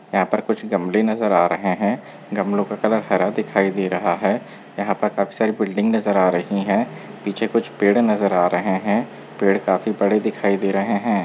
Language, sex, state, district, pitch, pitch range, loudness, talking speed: Hindi, male, Chhattisgarh, Bilaspur, 100 Hz, 95-110 Hz, -20 LUFS, 210 wpm